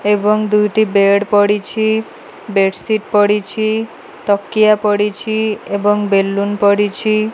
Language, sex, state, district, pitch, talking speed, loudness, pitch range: Odia, female, Odisha, Malkangiri, 210 Hz, 90 wpm, -15 LUFS, 205-215 Hz